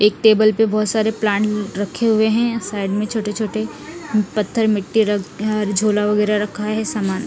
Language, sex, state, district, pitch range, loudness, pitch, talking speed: Hindi, female, Punjab, Fazilka, 210-220 Hz, -18 LUFS, 215 Hz, 180 wpm